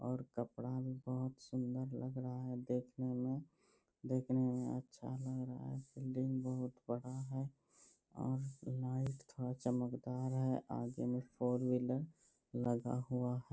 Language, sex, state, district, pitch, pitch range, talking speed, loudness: Hindi, male, Bihar, Bhagalpur, 130 Hz, 125-130 Hz, 95 wpm, -42 LUFS